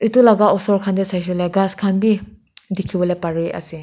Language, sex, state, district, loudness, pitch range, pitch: Nagamese, female, Nagaland, Kohima, -18 LUFS, 180-205 Hz, 195 Hz